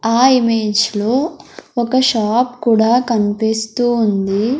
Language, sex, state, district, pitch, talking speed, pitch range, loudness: Telugu, male, Andhra Pradesh, Sri Satya Sai, 230 Hz, 105 wpm, 220-250 Hz, -15 LUFS